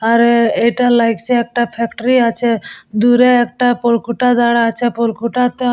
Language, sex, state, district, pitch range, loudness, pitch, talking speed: Bengali, female, West Bengal, Purulia, 230-245 Hz, -14 LUFS, 235 Hz, 135 wpm